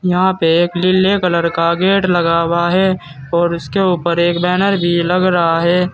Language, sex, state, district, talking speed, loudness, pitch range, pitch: Hindi, male, Uttar Pradesh, Saharanpur, 190 wpm, -14 LUFS, 170-185 Hz, 175 Hz